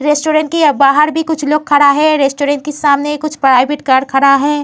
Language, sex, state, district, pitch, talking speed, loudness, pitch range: Hindi, female, Uttar Pradesh, Varanasi, 295 Hz, 205 wpm, -11 LUFS, 280-300 Hz